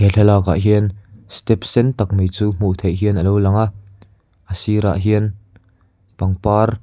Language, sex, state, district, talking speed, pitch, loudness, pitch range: Mizo, male, Mizoram, Aizawl, 160 wpm, 100 Hz, -17 LUFS, 95-105 Hz